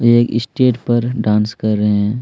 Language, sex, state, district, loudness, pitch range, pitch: Hindi, male, Chhattisgarh, Kabirdham, -16 LUFS, 105-120 Hz, 115 Hz